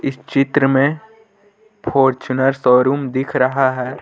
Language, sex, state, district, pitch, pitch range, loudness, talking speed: Hindi, male, Uttar Pradesh, Lucknow, 135 Hz, 130-150 Hz, -16 LUFS, 120 wpm